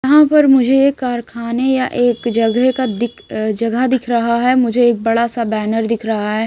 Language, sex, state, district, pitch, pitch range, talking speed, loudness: Hindi, female, Bihar, Kaimur, 235 Hz, 230-255 Hz, 205 wpm, -15 LUFS